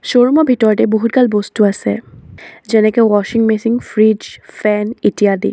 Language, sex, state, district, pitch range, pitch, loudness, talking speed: Assamese, female, Assam, Sonitpur, 205-230 Hz, 215 Hz, -14 LUFS, 140 wpm